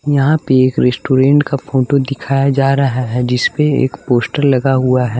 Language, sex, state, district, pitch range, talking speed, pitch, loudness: Hindi, male, Bihar, West Champaran, 130-140 Hz, 195 wpm, 135 Hz, -14 LUFS